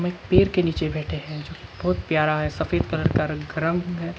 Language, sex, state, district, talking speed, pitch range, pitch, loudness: Hindi, male, Arunachal Pradesh, Lower Dibang Valley, 230 wpm, 155-175 Hz, 160 Hz, -23 LUFS